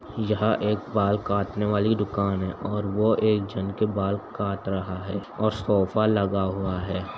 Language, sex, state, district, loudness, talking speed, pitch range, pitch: Hindi, male, Uttar Pradesh, Jalaun, -25 LUFS, 175 wpm, 95-105 Hz, 100 Hz